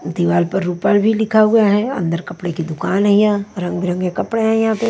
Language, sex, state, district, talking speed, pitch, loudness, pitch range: Hindi, female, Maharashtra, Washim, 235 wpm, 200 Hz, -16 LUFS, 175-220 Hz